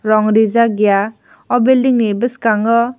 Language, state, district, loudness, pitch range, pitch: Kokborok, Tripura, Dhalai, -14 LUFS, 215-245 Hz, 230 Hz